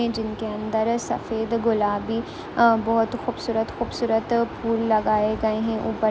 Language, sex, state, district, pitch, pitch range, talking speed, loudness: Hindi, female, Chhattisgarh, Sarguja, 225 Hz, 220-230 Hz, 110 wpm, -23 LUFS